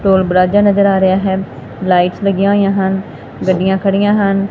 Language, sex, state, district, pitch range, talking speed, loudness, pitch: Punjabi, female, Punjab, Fazilka, 185-200 Hz, 175 wpm, -13 LUFS, 190 Hz